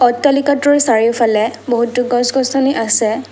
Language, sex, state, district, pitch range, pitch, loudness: Assamese, female, Assam, Kamrup Metropolitan, 230-275 Hz, 245 Hz, -14 LUFS